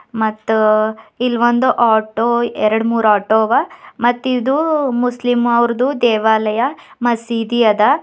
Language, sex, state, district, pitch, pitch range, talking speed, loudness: Kannada, female, Karnataka, Bidar, 235 Hz, 220-245 Hz, 105 wpm, -15 LUFS